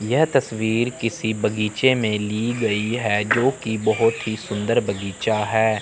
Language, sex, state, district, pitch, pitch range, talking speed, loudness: Hindi, male, Chandigarh, Chandigarh, 110 Hz, 105-115 Hz, 145 wpm, -21 LUFS